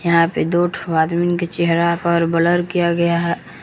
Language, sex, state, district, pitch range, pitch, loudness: Hindi, male, Jharkhand, Palamu, 170-175 Hz, 170 Hz, -17 LUFS